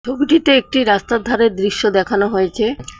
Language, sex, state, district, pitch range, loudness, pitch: Bengali, female, West Bengal, Cooch Behar, 200-255 Hz, -15 LUFS, 230 Hz